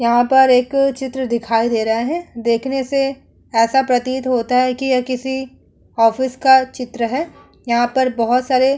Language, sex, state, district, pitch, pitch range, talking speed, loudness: Hindi, female, Uttar Pradesh, Muzaffarnagar, 255 Hz, 235-265 Hz, 180 wpm, -17 LUFS